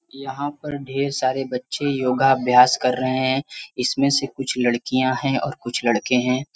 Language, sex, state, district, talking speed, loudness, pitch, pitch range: Hindi, male, Uttar Pradesh, Varanasi, 175 wpm, -21 LUFS, 130 Hz, 125-135 Hz